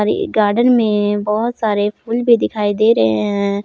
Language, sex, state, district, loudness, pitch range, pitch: Hindi, female, Jharkhand, Palamu, -15 LUFS, 205-225 Hz, 210 Hz